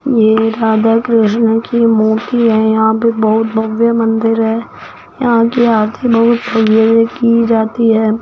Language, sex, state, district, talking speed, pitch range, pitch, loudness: Hindi, female, Rajasthan, Jaipur, 145 wpm, 220-230 Hz, 225 Hz, -12 LUFS